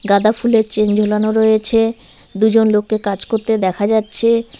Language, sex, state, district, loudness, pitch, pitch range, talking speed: Bengali, female, West Bengal, Cooch Behar, -15 LUFS, 215 Hz, 210-225 Hz, 145 wpm